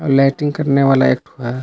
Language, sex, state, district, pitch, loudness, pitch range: Hindi, male, Jharkhand, Palamu, 135 Hz, -15 LUFS, 130-145 Hz